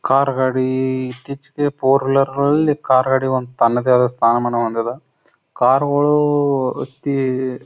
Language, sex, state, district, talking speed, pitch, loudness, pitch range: Kannada, male, Karnataka, Bijapur, 120 wpm, 130 Hz, -17 LUFS, 130-140 Hz